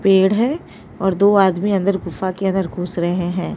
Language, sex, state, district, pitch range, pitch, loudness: Hindi, female, Maharashtra, Mumbai Suburban, 180-200 Hz, 190 Hz, -18 LUFS